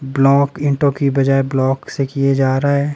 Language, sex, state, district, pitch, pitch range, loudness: Hindi, male, Himachal Pradesh, Shimla, 135 Hz, 135-140 Hz, -16 LUFS